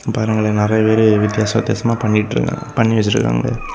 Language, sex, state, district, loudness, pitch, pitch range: Tamil, male, Tamil Nadu, Kanyakumari, -16 LUFS, 110 Hz, 105-115 Hz